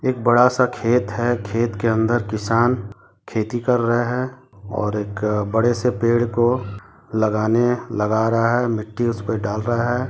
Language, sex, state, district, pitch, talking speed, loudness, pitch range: Hindi, male, Bihar, Gopalganj, 115 Hz, 165 wpm, -20 LUFS, 105-120 Hz